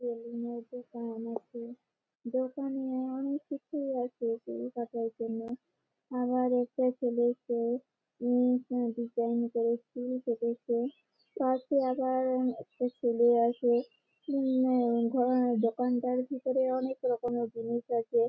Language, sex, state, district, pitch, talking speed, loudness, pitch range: Bengali, female, West Bengal, Malda, 245 Hz, 110 wpm, -31 LUFS, 235-255 Hz